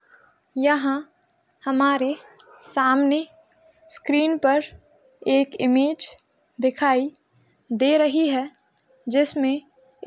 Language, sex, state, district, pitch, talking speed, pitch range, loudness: Hindi, female, Maharashtra, Sindhudurg, 285 Hz, 75 wpm, 265-315 Hz, -22 LUFS